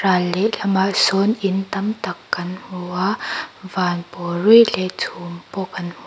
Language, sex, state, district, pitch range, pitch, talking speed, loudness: Mizo, female, Mizoram, Aizawl, 180-200 Hz, 190 Hz, 170 wpm, -20 LUFS